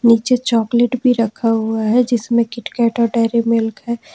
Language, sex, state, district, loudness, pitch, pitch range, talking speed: Hindi, female, Jharkhand, Ranchi, -16 LUFS, 235 Hz, 230-240 Hz, 160 wpm